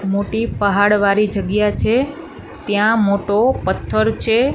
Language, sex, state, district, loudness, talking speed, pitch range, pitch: Gujarati, female, Gujarat, Gandhinagar, -17 LUFS, 120 wpm, 200-225 Hz, 205 Hz